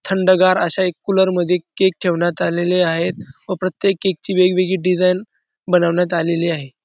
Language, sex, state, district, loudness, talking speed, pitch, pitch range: Marathi, male, Maharashtra, Dhule, -17 LUFS, 160 wpm, 180 Hz, 175-190 Hz